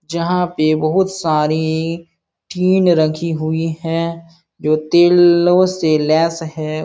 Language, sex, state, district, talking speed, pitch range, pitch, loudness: Hindi, male, Uttar Pradesh, Jalaun, 115 wpm, 155-175 Hz, 165 Hz, -15 LUFS